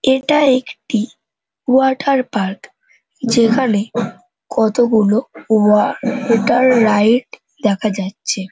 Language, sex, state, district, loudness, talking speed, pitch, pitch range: Bengali, male, West Bengal, North 24 Parganas, -15 LUFS, 70 wpm, 235 Hz, 210-265 Hz